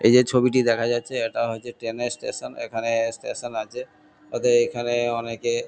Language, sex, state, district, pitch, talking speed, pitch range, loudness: Bengali, male, West Bengal, Kolkata, 120 Hz, 170 wpm, 115-125 Hz, -24 LUFS